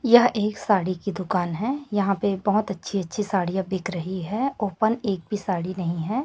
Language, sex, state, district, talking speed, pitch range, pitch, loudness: Hindi, female, Chhattisgarh, Raipur, 200 wpm, 185-215 Hz, 200 Hz, -25 LUFS